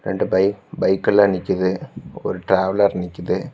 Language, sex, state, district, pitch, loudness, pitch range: Tamil, male, Tamil Nadu, Kanyakumari, 95 Hz, -20 LUFS, 95-100 Hz